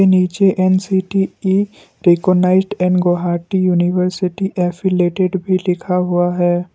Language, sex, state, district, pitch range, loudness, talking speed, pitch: Hindi, male, Assam, Kamrup Metropolitan, 175-190 Hz, -16 LUFS, 105 wpm, 185 Hz